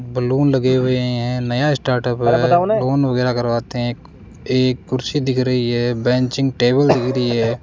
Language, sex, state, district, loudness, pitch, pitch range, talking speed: Hindi, male, Rajasthan, Jaipur, -18 LUFS, 125 Hz, 120-130 Hz, 165 wpm